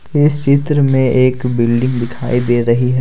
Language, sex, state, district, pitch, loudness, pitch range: Hindi, male, Jharkhand, Deoghar, 125 Hz, -14 LUFS, 120-140 Hz